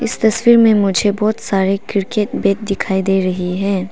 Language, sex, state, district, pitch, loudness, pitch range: Hindi, female, Arunachal Pradesh, Papum Pare, 200 Hz, -15 LUFS, 190-215 Hz